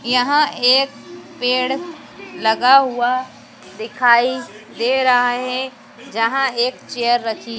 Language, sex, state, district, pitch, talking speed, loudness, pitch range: Hindi, female, Madhya Pradesh, Dhar, 245 Hz, 105 wpm, -17 LUFS, 235-260 Hz